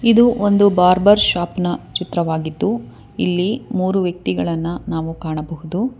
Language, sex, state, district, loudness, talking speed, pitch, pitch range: Kannada, female, Karnataka, Bangalore, -18 LUFS, 110 wpm, 180 Hz, 160-200 Hz